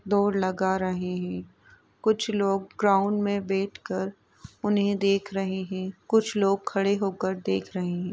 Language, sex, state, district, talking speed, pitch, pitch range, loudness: Hindi, female, Uttar Pradesh, Etah, 160 wpm, 195 Hz, 185-200 Hz, -26 LUFS